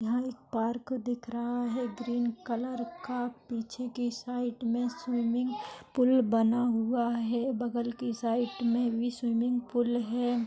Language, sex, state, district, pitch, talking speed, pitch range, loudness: Hindi, female, Maharashtra, Nagpur, 240 Hz, 145 wpm, 235-245 Hz, -31 LUFS